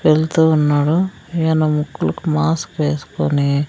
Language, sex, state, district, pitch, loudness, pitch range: Telugu, female, Andhra Pradesh, Sri Satya Sai, 155 Hz, -17 LUFS, 150-160 Hz